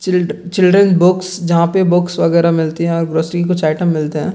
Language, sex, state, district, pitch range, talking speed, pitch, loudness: Hindi, male, Bihar, Gaya, 165-180 Hz, 205 wpm, 175 Hz, -14 LUFS